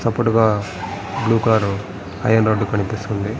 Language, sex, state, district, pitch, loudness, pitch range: Telugu, male, Andhra Pradesh, Srikakulam, 110 Hz, -19 LUFS, 100-110 Hz